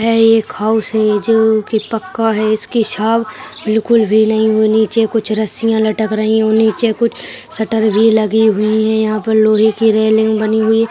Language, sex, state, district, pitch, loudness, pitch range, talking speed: Hindi, female, Rajasthan, Churu, 220 Hz, -13 LUFS, 215-225 Hz, 185 wpm